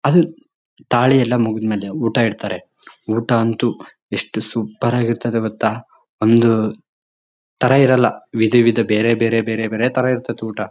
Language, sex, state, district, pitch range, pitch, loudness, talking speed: Kannada, male, Karnataka, Bellary, 110-120 Hz, 115 Hz, -17 LUFS, 135 wpm